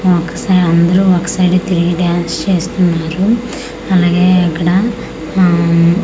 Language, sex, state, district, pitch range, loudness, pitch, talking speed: Telugu, female, Andhra Pradesh, Manyam, 170-185 Hz, -12 LUFS, 180 Hz, 120 wpm